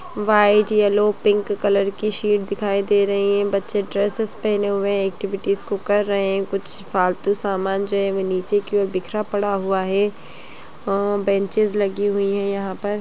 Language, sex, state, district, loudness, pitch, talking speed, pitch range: Hindi, female, Bihar, Lakhisarai, -20 LUFS, 200 Hz, 190 wpm, 195-205 Hz